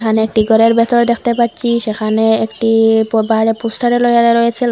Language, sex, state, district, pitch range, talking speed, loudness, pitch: Bengali, female, Assam, Hailakandi, 220-235 Hz, 165 wpm, -13 LUFS, 225 Hz